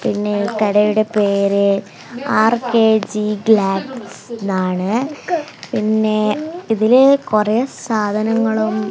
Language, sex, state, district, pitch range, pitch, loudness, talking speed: Malayalam, female, Kerala, Kasaragod, 205-235 Hz, 215 Hz, -16 LUFS, 65 wpm